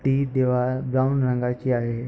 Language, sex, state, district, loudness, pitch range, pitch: Marathi, male, Maharashtra, Pune, -23 LUFS, 125-130 Hz, 130 Hz